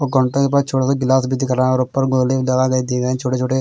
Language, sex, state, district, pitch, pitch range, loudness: Hindi, male, Bihar, Patna, 130 Hz, 130-135 Hz, -17 LUFS